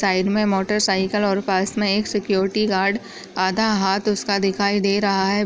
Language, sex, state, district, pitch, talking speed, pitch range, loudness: Hindi, female, Chhattisgarh, Raigarh, 200 Hz, 185 wpm, 195-210 Hz, -20 LUFS